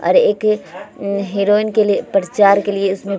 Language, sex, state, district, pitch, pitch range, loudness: Hindi, female, Bihar, Vaishali, 200 Hz, 200-210 Hz, -16 LUFS